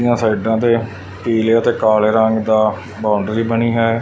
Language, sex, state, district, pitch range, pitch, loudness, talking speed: Punjabi, male, Punjab, Fazilka, 110-115 Hz, 110 Hz, -16 LUFS, 165 wpm